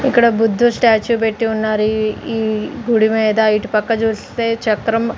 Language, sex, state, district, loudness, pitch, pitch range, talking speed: Telugu, female, Andhra Pradesh, Sri Satya Sai, -16 LUFS, 225 Hz, 215-230 Hz, 150 wpm